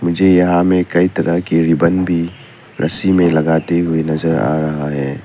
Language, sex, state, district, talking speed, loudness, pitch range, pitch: Hindi, male, Arunachal Pradesh, Papum Pare, 170 wpm, -15 LUFS, 80-90 Hz, 85 Hz